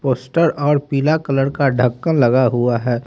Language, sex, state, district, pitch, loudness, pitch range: Hindi, male, Haryana, Jhajjar, 135 Hz, -16 LUFS, 125-145 Hz